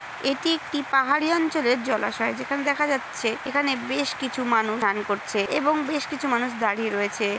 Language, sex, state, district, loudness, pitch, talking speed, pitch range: Bengali, female, West Bengal, Purulia, -24 LUFS, 265 Hz, 160 wpm, 225-290 Hz